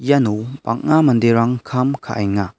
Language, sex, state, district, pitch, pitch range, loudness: Garo, male, Meghalaya, West Garo Hills, 120 Hz, 110-135 Hz, -17 LUFS